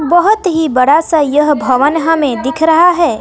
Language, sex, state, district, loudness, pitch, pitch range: Hindi, female, Bihar, West Champaran, -11 LUFS, 315 Hz, 285-330 Hz